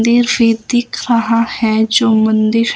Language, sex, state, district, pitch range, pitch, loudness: Hindi, female, Himachal Pradesh, Shimla, 220-240 Hz, 230 Hz, -13 LUFS